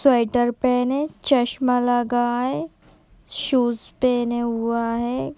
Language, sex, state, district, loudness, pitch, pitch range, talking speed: Hindi, female, Uttar Pradesh, Etah, -22 LUFS, 245 Hz, 240-260 Hz, 90 wpm